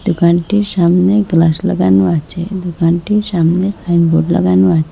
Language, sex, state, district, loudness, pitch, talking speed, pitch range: Bengali, female, Assam, Hailakandi, -13 LUFS, 170 Hz, 120 wpm, 165-190 Hz